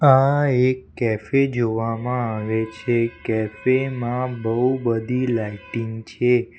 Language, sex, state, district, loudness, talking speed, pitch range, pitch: Gujarati, male, Gujarat, Valsad, -22 LUFS, 110 wpm, 110-130 Hz, 120 Hz